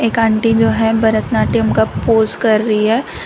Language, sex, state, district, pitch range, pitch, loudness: Hindi, female, Gujarat, Valsad, 210-225 Hz, 220 Hz, -14 LUFS